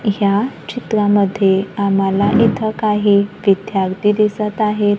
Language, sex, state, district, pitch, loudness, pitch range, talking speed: Marathi, female, Maharashtra, Gondia, 205 Hz, -16 LUFS, 200-215 Hz, 95 wpm